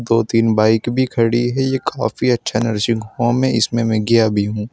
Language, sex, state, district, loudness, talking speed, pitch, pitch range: Hindi, male, Uttar Pradesh, Shamli, -17 LUFS, 215 wpm, 115 Hz, 110-120 Hz